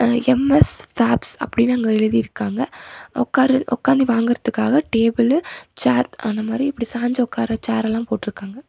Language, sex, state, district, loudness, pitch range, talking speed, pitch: Tamil, female, Tamil Nadu, Nilgiris, -19 LUFS, 220-255 Hz, 125 wpm, 235 Hz